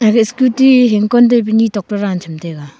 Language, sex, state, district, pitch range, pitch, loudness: Wancho, female, Arunachal Pradesh, Longding, 200-240 Hz, 220 Hz, -12 LUFS